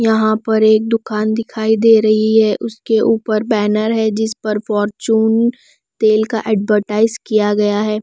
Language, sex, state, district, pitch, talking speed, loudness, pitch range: Hindi, female, Bihar, West Champaran, 220 Hz, 155 wpm, -15 LUFS, 215-225 Hz